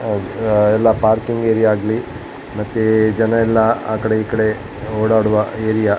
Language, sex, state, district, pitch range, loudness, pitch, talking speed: Kannada, male, Karnataka, Dakshina Kannada, 105-110 Hz, -16 LUFS, 110 Hz, 150 wpm